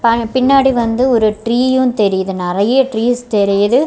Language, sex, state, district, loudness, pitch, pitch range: Tamil, female, Tamil Nadu, Kanyakumari, -13 LUFS, 235 Hz, 210-255 Hz